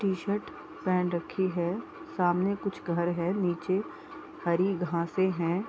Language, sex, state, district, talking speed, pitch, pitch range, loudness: Hindi, female, Bihar, East Champaran, 135 wpm, 185 Hz, 175-195 Hz, -30 LUFS